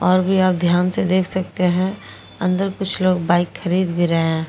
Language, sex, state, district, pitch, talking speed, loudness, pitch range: Hindi, female, Uttar Pradesh, Jyotiba Phule Nagar, 180 Hz, 215 wpm, -19 LUFS, 175-185 Hz